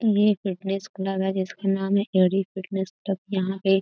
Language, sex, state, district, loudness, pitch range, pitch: Hindi, female, Uttar Pradesh, Gorakhpur, -25 LUFS, 190-195 Hz, 195 Hz